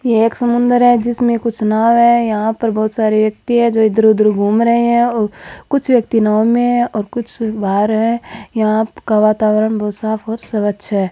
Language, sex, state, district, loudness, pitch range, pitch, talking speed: Marwari, female, Rajasthan, Churu, -14 LUFS, 215-235 Hz, 220 Hz, 205 wpm